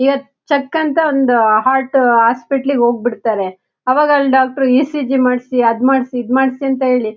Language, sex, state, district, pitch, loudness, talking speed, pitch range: Kannada, female, Karnataka, Shimoga, 260 Hz, -14 LUFS, 175 wpm, 240-275 Hz